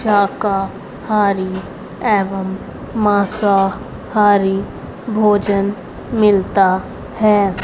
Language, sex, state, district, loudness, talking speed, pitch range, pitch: Hindi, female, Haryana, Rohtak, -16 LUFS, 45 wpm, 195-210 Hz, 200 Hz